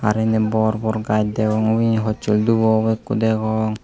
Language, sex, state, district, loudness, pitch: Chakma, male, Tripura, Unakoti, -19 LUFS, 110 Hz